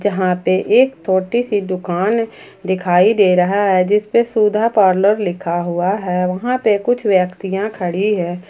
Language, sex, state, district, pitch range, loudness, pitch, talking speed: Hindi, female, Jharkhand, Ranchi, 185-210 Hz, -16 LUFS, 195 Hz, 160 wpm